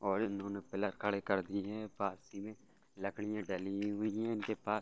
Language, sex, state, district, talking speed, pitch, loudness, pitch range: Hindi, male, Bihar, Gopalganj, 200 wpm, 100 Hz, -39 LUFS, 100-105 Hz